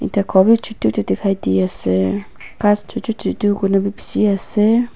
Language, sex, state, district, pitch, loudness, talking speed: Nagamese, female, Nagaland, Dimapur, 200 Hz, -17 LUFS, 180 wpm